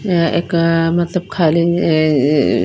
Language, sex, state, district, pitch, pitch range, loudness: Hindi, female, Bihar, Patna, 165 Hz, 160-175 Hz, -15 LUFS